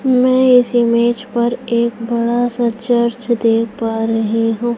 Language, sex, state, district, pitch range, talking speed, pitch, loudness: Hindi, female, Chhattisgarh, Raipur, 230-240 Hz, 150 wpm, 235 Hz, -15 LUFS